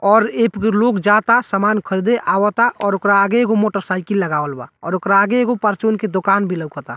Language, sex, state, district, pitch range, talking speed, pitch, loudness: Bhojpuri, male, Bihar, Muzaffarpur, 195-220 Hz, 200 wpm, 205 Hz, -16 LUFS